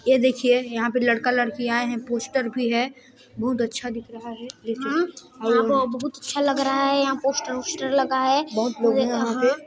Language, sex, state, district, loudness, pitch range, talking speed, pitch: Hindi, male, Chhattisgarh, Sarguja, -23 LUFS, 235-270 Hz, 210 wpm, 250 Hz